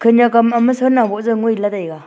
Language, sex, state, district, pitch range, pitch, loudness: Wancho, female, Arunachal Pradesh, Longding, 205-240 Hz, 230 Hz, -14 LUFS